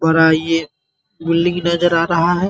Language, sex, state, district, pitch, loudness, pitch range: Hindi, male, Bihar, Muzaffarpur, 165 Hz, -16 LUFS, 165-175 Hz